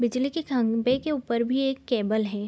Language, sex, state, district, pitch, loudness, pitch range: Hindi, female, Bihar, East Champaran, 245 Hz, -26 LUFS, 230-270 Hz